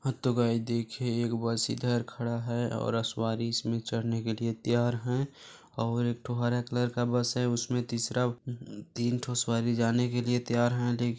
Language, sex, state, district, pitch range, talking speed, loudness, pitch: Hindi, male, Chhattisgarh, Balrampur, 115-120 Hz, 195 wpm, -30 LUFS, 120 Hz